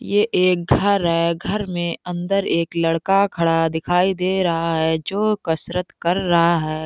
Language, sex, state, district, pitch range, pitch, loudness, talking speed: Hindi, female, Bihar, East Champaran, 165-190 Hz, 175 Hz, -19 LUFS, 165 wpm